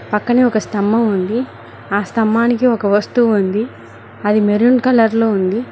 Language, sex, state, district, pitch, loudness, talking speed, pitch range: Telugu, female, Telangana, Mahabubabad, 220 Hz, -15 LUFS, 145 wpm, 205-240 Hz